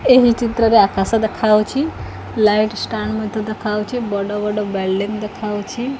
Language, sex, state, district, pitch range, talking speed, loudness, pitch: Odia, female, Odisha, Khordha, 210-230 Hz, 150 wpm, -18 LUFS, 215 Hz